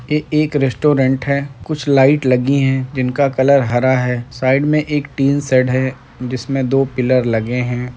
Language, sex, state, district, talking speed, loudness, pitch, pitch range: Hindi, male, Uttar Pradesh, Deoria, 175 wpm, -16 LUFS, 130 Hz, 125-140 Hz